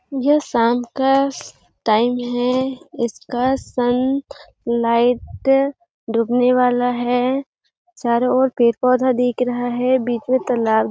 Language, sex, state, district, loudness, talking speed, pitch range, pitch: Hindi, female, Chhattisgarh, Sarguja, -18 LUFS, 115 wpm, 240-265 Hz, 250 Hz